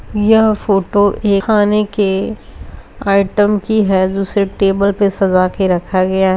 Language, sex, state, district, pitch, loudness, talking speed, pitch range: Hindi, female, Bihar, Kishanganj, 200 Hz, -14 LUFS, 150 wpm, 190-210 Hz